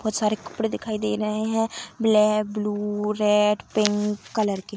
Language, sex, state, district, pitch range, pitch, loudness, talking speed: Hindi, female, Bihar, Darbhanga, 210-215 Hz, 215 Hz, -24 LUFS, 165 wpm